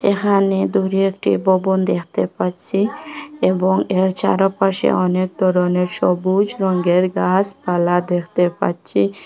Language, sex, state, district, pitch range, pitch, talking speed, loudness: Bengali, female, Assam, Hailakandi, 180-195 Hz, 185 Hz, 105 wpm, -18 LUFS